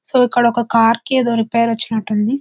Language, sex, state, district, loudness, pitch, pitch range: Telugu, female, Andhra Pradesh, Visakhapatnam, -16 LUFS, 230 Hz, 225-245 Hz